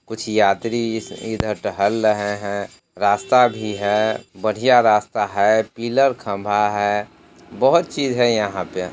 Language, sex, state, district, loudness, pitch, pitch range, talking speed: Hindi, male, Bihar, Sitamarhi, -19 LUFS, 110 Hz, 105-115 Hz, 140 wpm